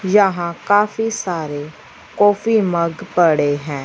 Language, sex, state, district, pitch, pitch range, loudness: Hindi, male, Punjab, Fazilka, 180 Hz, 160-205 Hz, -17 LUFS